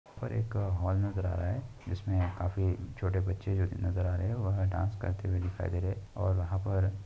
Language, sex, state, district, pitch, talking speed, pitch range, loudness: Hindi, male, Uttar Pradesh, Muzaffarnagar, 95 Hz, 230 wpm, 90-100 Hz, -33 LUFS